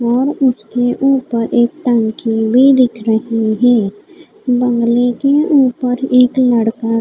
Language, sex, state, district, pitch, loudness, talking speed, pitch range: Hindi, female, Odisha, Khordha, 245 Hz, -13 LUFS, 120 wpm, 230-260 Hz